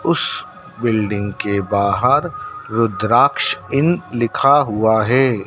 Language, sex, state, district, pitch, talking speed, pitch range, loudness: Hindi, male, Madhya Pradesh, Dhar, 115 Hz, 100 wpm, 105-140 Hz, -17 LUFS